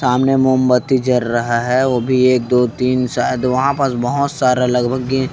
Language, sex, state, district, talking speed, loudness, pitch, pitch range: Chhattisgarhi, male, Chhattisgarh, Kabirdham, 180 wpm, -15 LUFS, 125 Hz, 125-130 Hz